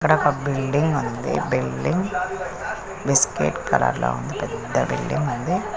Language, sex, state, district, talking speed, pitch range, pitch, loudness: Telugu, female, Andhra Pradesh, Chittoor, 115 wpm, 135-180 Hz, 145 Hz, -23 LUFS